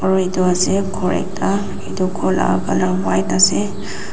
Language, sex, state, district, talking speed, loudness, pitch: Nagamese, female, Nagaland, Dimapur, 160 wpm, -17 LUFS, 185 Hz